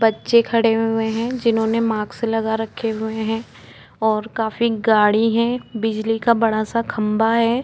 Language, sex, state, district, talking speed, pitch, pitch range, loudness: Hindi, female, Maharashtra, Chandrapur, 150 wpm, 225 Hz, 220-230 Hz, -19 LUFS